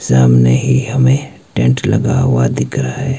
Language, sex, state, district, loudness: Hindi, male, Himachal Pradesh, Shimla, -13 LUFS